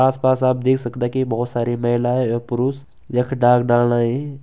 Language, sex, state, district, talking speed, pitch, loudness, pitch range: Garhwali, male, Uttarakhand, Tehri Garhwal, 205 wpm, 125 Hz, -19 LUFS, 120-130 Hz